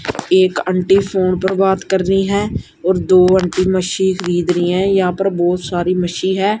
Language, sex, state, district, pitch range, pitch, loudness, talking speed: Punjabi, female, Punjab, Kapurthala, 180-190 Hz, 185 Hz, -15 LUFS, 190 wpm